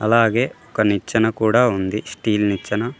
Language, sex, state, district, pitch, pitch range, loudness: Telugu, male, Telangana, Mahabubabad, 110 Hz, 105-115 Hz, -19 LUFS